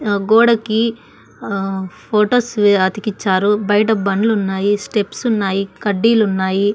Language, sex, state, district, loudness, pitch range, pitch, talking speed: Telugu, female, Andhra Pradesh, Annamaya, -16 LUFS, 195-220 Hz, 205 Hz, 105 wpm